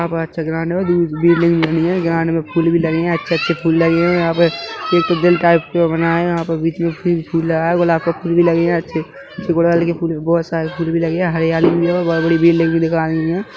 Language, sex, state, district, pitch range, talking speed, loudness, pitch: Hindi, male, Chhattisgarh, Rajnandgaon, 165-170 Hz, 290 wpm, -16 LUFS, 170 Hz